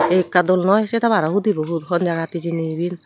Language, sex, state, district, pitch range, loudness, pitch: Chakma, female, Tripura, Unakoti, 165-200 Hz, -19 LUFS, 180 Hz